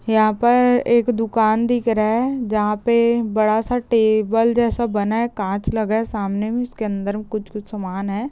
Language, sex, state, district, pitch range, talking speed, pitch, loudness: Hindi, female, Bihar, Saharsa, 210-235 Hz, 180 wpm, 220 Hz, -19 LUFS